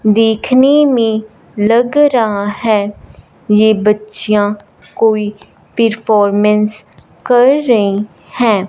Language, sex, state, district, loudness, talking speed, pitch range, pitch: Hindi, female, Punjab, Fazilka, -12 LUFS, 85 wpm, 210-230 Hz, 215 Hz